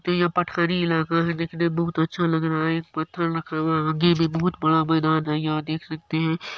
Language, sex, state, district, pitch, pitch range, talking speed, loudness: Maithili, male, Bihar, Supaul, 165 Hz, 160-170 Hz, 235 wpm, -23 LUFS